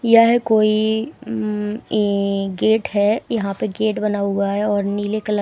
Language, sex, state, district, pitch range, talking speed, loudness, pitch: Hindi, female, Himachal Pradesh, Shimla, 205-220 Hz, 155 wpm, -19 LUFS, 210 Hz